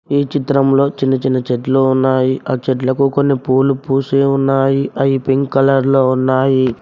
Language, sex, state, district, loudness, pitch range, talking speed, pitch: Telugu, male, Telangana, Mahabubabad, -14 LUFS, 130-135 Hz, 150 wpm, 135 Hz